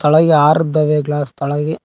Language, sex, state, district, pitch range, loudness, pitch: Kannada, male, Karnataka, Koppal, 145-155 Hz, -14 LUFS, 150 Hz